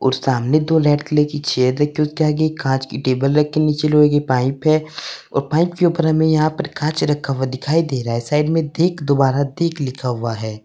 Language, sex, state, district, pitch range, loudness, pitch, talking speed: Hindi, male, Uttar Pradesh, Saharanpur, 135-155 Hz, -18 LUFS, 150 Hz, 255 wpm